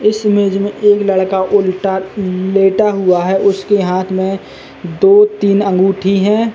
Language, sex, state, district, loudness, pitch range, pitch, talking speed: Hindi, male, Uttar Pradesh, Jalaun, -13 LUFS, 190-205 Hz, 195 Hz, 145 wpm